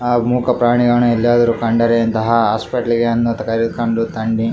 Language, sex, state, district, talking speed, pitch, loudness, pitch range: Kannada, male, Karnataka, Raichur, 105 wpm, 115 Hz, -15 LUFS, 115-120 Hz